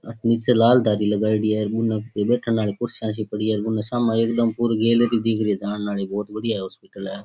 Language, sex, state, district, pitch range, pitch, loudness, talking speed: Rajasthani, male, Rajasthan, Churu, 105-115 Hz, 110 Hz, -22 LUFS, 230 wpm